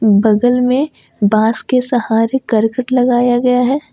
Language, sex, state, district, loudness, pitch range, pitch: Hindi, female, Jharkhand, Ranchi, -14 LUFS, 220-255 Hz, 245 Hz